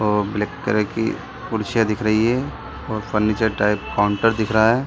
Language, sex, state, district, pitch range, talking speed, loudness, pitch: Hindi, male, Bihar, Sitamarhi, 105-115 Hz, 185 wpm, -21 LUFS, 110 Hz